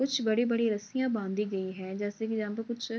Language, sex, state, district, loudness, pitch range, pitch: Hindi, female, Bihar, Kishanganj, -31 LUFS, 205-235 Hz, 220 Hz